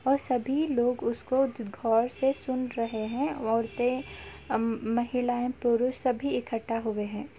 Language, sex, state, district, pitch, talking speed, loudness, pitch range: Hindi, female, Uttar Pradesh, Jalaun, 245 Hz, 155 wpm, -29 LUFS, 230-255 Hz